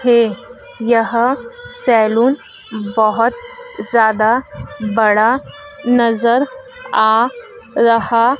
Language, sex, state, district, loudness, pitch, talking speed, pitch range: Hindi, female, Madhya Pradesh, Dhar, -15 LUFS, 235 Hz, 65 wpm, 225-290 Hz